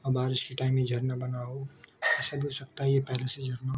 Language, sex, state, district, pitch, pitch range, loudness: Hindi, male, Jharkhand, Sahebganj, 130 Hz, 125-135 Hz, -30 LUFS